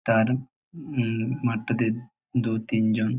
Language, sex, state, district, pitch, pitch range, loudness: Bengali, male, West Bengal, Jalpaiguri, 115 Hz, 110-125 Hz, -26 LUFS